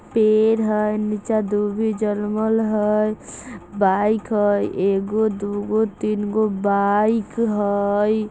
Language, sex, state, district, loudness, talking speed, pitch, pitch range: Bajjika, female, Bihar, Vaishali, -20 LUFS, 115 wpm, 210 Hz, 205-220 Hz